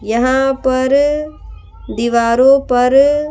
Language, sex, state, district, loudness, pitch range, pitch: Hindi, female, Madhya Pradesh, Bhopal, -13 LUFS, 245-280 Hz, 260 Hz